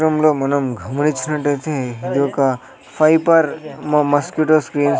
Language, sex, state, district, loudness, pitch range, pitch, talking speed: Telugu, male, Andhra Pradesh, Sri Satya Sai, -17 LUFS, 135-155 Hz, 150 Hz, 110 wpm